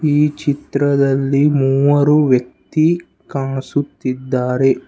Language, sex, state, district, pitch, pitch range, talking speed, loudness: Kannada, male, Karnataka, Bangalore, 140 Hz, 135-145 Hz, 60 wpm, -16 LUFS